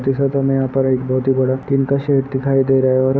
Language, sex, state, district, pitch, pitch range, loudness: Hindi, male, Bihar, Purnia, 135 Hz, 130-135 Hz, -17 LUFS